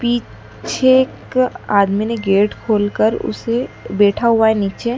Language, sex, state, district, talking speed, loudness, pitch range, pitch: Hindi, female, Madhya Pradesh, Dhar, 135 wpm, -16 LUFS, 205-240 Hz, 225 Hz